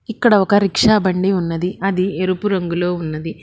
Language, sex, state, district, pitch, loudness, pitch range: Telugu, female, Telangana, Hyderabad, 185 Hz, -17 LUFS, 175-205 Hz